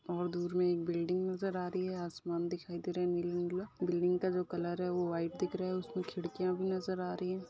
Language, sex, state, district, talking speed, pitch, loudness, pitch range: Hindi, female, Uttar Pradesh, Budaun, 255 wpm, 180 Hz, -36 LUFS, 175-185 Hz